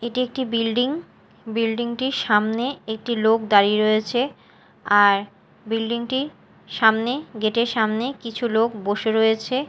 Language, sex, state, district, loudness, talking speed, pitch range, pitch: Bengali, female, Odisha, Malkangiri, -21 LUFS, 130 wpm, 220-245 Hz, 225 Hz